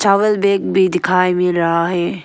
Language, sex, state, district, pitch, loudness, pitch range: Hindi, female, Arunachal Pradesh, Longding, 180 Hz, -15 LUFS, 175-200 Hz